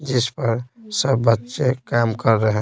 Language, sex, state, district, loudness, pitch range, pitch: Hindi, male, Bihar, Patna, -20 LUFS, 115-135 Hz, 120 Hz